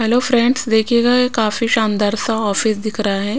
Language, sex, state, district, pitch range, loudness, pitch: Hindi, female, Punjab, Pathankot, 215-240 Hz, -16 LUFS, 225 Hz